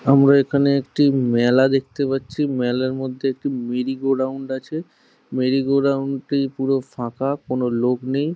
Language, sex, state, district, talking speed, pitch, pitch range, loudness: Bengali, male, West Bengal, Jhargram, 160 wpm, 135 Hz, 130-140 Hz, -20 LUFS